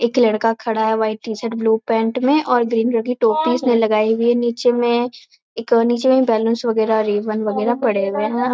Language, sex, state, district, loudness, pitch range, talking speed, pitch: Hindi, female, Bihar, Jamui, -17 LUFS, 220-240 Hz, 210 wpm, 230 Hz